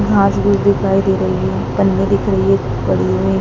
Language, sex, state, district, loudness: Hindi, female, Madhya Pradesh, Dhar, -15 LUFS